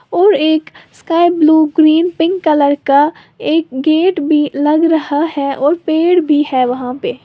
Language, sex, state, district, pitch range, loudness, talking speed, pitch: Hindi, female, Uttar Pradesh, Lalitpur, 290-330 Hz, -13 LUFS, 165 wpm, 310 Hz